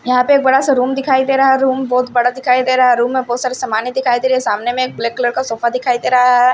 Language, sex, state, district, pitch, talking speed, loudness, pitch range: Hindi, female, Punjab, Kapurthala, 255 Hz, 340 wpm, -14 LUFS, 245-260 Hz